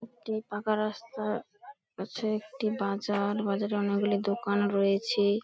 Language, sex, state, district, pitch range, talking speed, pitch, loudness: Bengali, female, West Bengal, Paschim Medinipur, 200-220 Hz, 120 wpm, 210 Hz, -30 LUFS